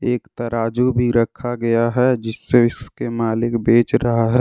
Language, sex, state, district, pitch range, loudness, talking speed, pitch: Hindi, male, Jharkhand, Deoghar, 115-125 Hz, -18 LUFS, 165 wpm, 120 Hz